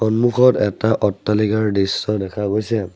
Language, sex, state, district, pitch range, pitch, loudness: Assamese, male, Assam, Sonitpur, 105-110 Hz, 105 Hz, -18 LUFS